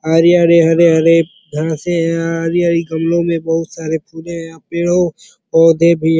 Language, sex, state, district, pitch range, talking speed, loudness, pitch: Hindi, male, Uttar Pradesh, Ghazipur, 165-170 Hz, 175 wpm, -14 LUFS, 165 Hz